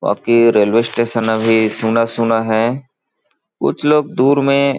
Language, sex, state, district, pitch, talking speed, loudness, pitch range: Hindi, male, Chhattisgarh, Balrampur, 115 Hz, 125 wpm, -15 LUFS, 110-135 Hz